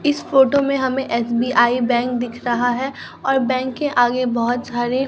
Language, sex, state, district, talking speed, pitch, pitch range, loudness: Hindi, female, Bihar, Katihar, 175 wpm, 250 Hz, 240-270 Hz, -19 LUFS